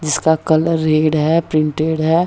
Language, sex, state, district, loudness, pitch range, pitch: Hindi, female, Bihar, Jahanabad, -16 LUFS, 155-160 Hz, 155 Hz